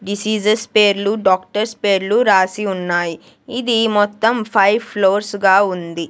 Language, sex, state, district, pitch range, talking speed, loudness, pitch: Telugu, female, Andhra Pradesh, Sri Satya Sai, 190-215 Hz, 120 wpm, -16 LUFS, 205 Hz